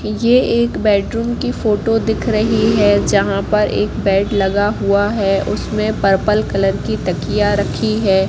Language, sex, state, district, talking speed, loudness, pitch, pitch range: Hindi, female, Madhya Pradesh, Katni, 160 wpm, -16 LUFS, 210 Hz, 200-220 Hz